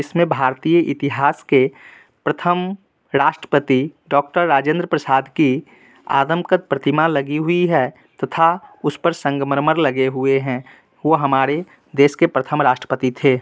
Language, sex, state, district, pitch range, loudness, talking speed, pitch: Hindi, male, Bihar, Muzaffarpur, 135-165 Hz, -18 LUFS, 130 wpm, 145 Hz